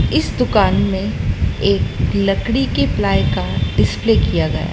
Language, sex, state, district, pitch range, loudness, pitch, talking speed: Hindi, female, Madhya Pradesh, Dhar, 95-105 Hz, -17 LUFS, 100 Hz, 140 wpm